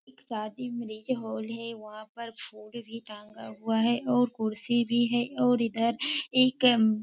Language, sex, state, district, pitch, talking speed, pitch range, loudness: Hindi, female, Bihar, Kishanganj, 230 Hz, 170 wpm, 220-245 Hz, -28 LUFS